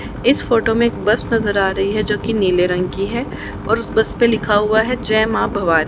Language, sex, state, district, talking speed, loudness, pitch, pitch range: Hindi, female, Haryana, Jhajjar, 255 wpm, -17 LUFS, 215 Hz, 195-225 Hz